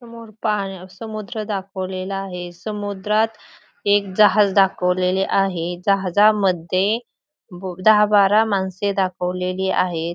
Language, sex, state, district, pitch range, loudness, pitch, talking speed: Marathi, female, Maharashtra, Pune, 185-215 Hz, -20 LUFS, 195 Hz, 100 wpm